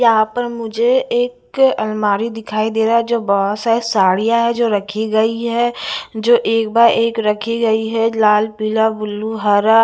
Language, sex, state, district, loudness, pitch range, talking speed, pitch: Hindi, female, Bihar, West Champaran, -16 LUFS, 215-235 Hz, 175 wpm, 225 Hz